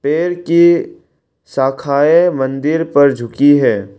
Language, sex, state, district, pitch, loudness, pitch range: Hindi, male, Arunachal Pradesh, Lower Dibang Valley, 145 Hz, -13 LUFS, 135-165 Hz